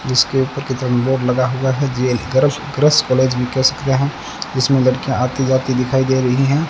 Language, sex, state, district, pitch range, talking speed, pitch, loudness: Hindi, male, Rajasthan, Bikaner, 130-135 Hz, 145 wpm, 130 Hz, -16 LUFS